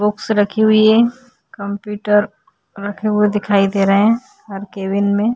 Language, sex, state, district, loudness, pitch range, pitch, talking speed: Hindi, female, Uttar Pradesh, Jyotiba Phule Nagar, -16 LUFS, 200-220 Hz, 210 Hz, 155 wpm